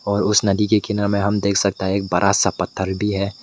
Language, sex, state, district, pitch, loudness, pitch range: Hindi, male, Meghalaya, West Garo Hills, 100 Hz, -19 LUFS, 100-105 Hz